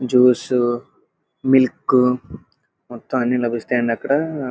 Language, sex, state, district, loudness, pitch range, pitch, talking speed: Telugu, male, Andhra Pradesh, Krishna, -19 LUFS, 120-130 Hz, 125 Hz, 105 wpm